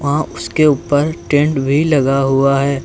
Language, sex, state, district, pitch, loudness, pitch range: Hindi, male, Uttar Pradesh, Lucknow, 140 Hz, -14 LUFS, 135-150 Hz